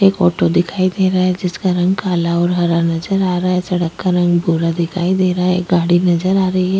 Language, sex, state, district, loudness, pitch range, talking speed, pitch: Hindi, female, Chhattisgarh, Sukma, -16 LUFS, 175-185 Hz, 265 wpm, 180 Hz